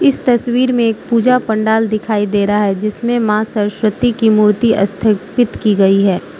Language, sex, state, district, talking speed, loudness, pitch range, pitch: Hindi, female, Manipur, Imphal West, 180 wpm, -14 LUFS, 210-235 Hz, 215 Hz